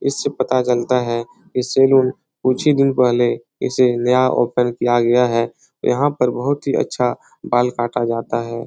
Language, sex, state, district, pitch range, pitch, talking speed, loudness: Hindi, male, Bihar, Jahanabad, 120-130 Hz, 125 Hz, 175 wpm, -18 LUFS